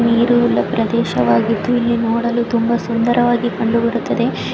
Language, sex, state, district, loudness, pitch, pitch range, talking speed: Kannada, female, Karnataka, Chamarajanagar, -16 LUFS, 235 Hz, 230-235 Hz, 105 wpm